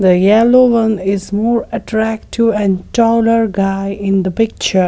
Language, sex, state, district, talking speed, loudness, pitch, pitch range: English, female, Maharashtra, Mumbai Suburban, 145 wpm, -13 LUFS, 215 Hz, 195-230 Hz